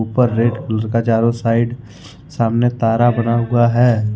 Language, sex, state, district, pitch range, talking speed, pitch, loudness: Hindi, male, Jharkhand, Ranchi, 115-120 Hz, 160 wpm, 115 Hz, -16 LUFS